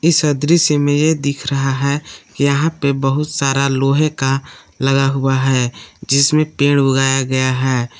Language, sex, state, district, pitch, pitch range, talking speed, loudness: Hindi, male, Jharkhand, Palamu, 140 Hz, 135-150 Hz, 165 wpm, -16 LUFS